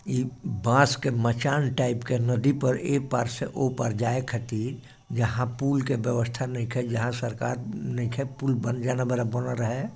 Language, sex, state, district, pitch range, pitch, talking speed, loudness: Bhojpuri, male, Bihar, Gopalganj, 120-130 Hz, 125 Hz, 175 wpm, -27 LUFS